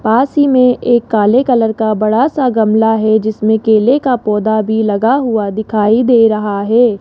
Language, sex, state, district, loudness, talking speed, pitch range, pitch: Hindi, female, Rajasthan, Jaipur, -12 LUFS, 190 wpm, 215-245 Hz, 220 Hz